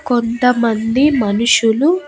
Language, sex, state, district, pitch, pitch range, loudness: Telugu, female, Andhra Pradesh, Annamaya, 240 Hz, 225-270 Hz, -14 LUFS